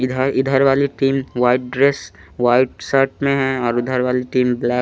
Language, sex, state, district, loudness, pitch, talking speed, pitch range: Hindi, male, Chandigarh, Chandigarh, -17 LUFS, 130 Hz, 200 wpm, 125-135 Hz